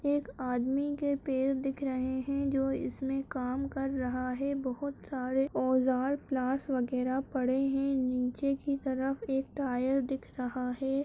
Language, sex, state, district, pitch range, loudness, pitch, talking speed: Kumaoni, female, Uttarakhand, Uttarkashi, 255-275 Hz, -32 LUFS, 270 Hz, 150 wpm